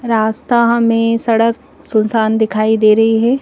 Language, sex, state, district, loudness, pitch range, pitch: Hindi, female, Madhya Pradesh, Bhopal, -13 LUFS, 220-235 Hz, 225 Hz